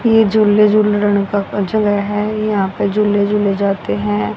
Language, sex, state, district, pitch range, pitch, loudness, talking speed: Hindi, female, Haryana, Rohtak, 200-210 Hz, 205 Hz, -15 LUFS, 180 wpm